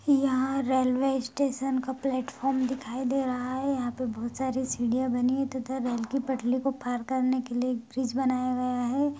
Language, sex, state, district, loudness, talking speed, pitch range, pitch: Hindi, female, Bihar, Sitamarhi, -28 LUFS, 195 wpm, 250-265 Hz, 260 Hz